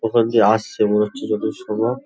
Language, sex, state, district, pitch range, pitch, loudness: Bengali, male, West Bengal, Kolkata, 105-115 Hz, 110 Hz, -19 LUFS